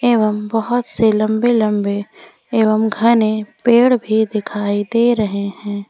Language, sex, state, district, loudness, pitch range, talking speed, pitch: Hindi, female, Jharkhand, Ranchi, -16 LUFS, 210-235 Hz, 130 wpm, 215 Hz